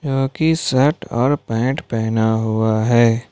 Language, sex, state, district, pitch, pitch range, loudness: Hindi, male, Jharkhand, Ranchi, 120 Hz, 110-135 Hz, -18 LUFS